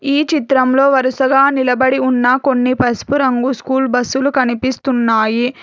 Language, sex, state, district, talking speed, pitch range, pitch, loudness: Telugu, female, Telangana, Hyderabad, 115 wpm, 250-270 Hz, 260 Hz, -14 LUFS